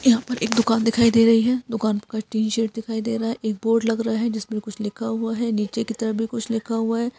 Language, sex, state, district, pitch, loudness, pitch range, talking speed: Hindi, female, Chhattisgarh, Korba, 225 Hz, -22 LUFS, 220-230 Hz, 300 wpm